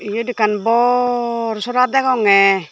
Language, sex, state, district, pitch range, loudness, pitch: Chakma, female, Tripura, Dhalai, 210-245 Hz, -16 LUFS, 230 Hz